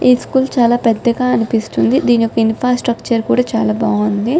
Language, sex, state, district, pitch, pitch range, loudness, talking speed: Telugu, female, Telangana, Nalgonda, 235 Hz, 225-250 Hz, -14 LUFS, 150 wpm